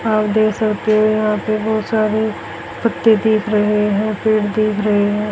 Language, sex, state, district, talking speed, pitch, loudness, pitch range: Hindi, female, Haryana, Charkhi Dadri, 180 wpm, 215 Hz, -16 LUFS, 210-215 Hz